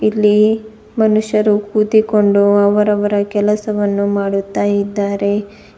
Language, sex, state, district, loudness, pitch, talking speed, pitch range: Kannada, female, Karnataka, Bidar, -15 LUFS, 210 Hz, 75 wpm, 200-215 Hz